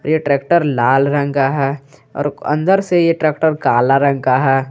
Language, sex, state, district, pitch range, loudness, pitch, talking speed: Hindi, male, Jharkhand, Garhwa, 135-155 Hz, -15 LUFS, 140 Hz, 190 wpm